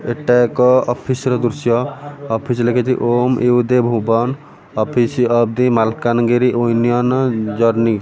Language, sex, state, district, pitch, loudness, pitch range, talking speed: Odia, male, Odisha, Malkangiri, 120 Hz, -16 LUFS, 115-125 Hz, 125 wpm